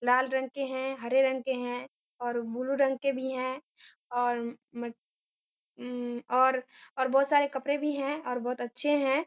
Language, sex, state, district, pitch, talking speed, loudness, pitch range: Hindi, female, Bihar, Kishanganj, 260 Hz, 175 wpm, -30 LUFS, 245-275 Hz